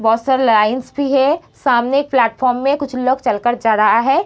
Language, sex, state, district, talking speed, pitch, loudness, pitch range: Hindi, female, Bihar, Jamui, 225 wpm, 255 Hz, -15 LUFS, 235-275 Hz